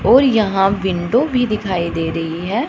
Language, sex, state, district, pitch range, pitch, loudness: Hindi, female, Punjab, Pathankot, 175-240 Hz, 195 Hz, -17 LUFS